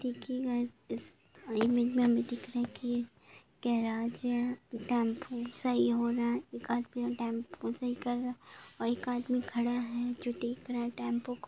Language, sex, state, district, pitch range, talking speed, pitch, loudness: Hindi, female, Jharkhand, Jamtara, 235-245 Hz, 190 wpm, 240 Hz, -34 LUFS